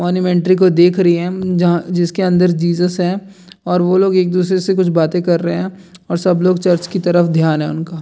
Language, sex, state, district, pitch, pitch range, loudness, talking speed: Hindi, male, Bihar, Jamui, 180 Hz, 175-185 Hz, -14 LUFS, 230 wpm